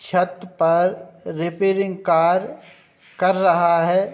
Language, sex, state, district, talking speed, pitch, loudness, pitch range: Hindi, male, Uttar Pradesh, Budaun, 100 wpm, 180 Hz, -19 LUFS, 170-190 Hz